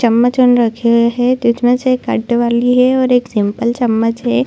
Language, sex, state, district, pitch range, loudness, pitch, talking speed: Hindi, female, Chhattisgarh, Bilaspur, 235-250 Hz, -13 LUFS, 240 Hz, 200 wpm